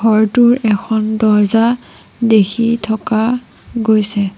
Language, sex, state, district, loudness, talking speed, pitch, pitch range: Assamese, female, Assam, Sonitpur, -14 LUFS, 80 wpm, 220 Hz, 215-230 Hz